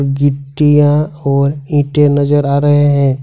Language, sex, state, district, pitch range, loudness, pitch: Hindi, male, Jharkhand, Ranchi, 140-145 Hz, -12 LUFS, 145 Hz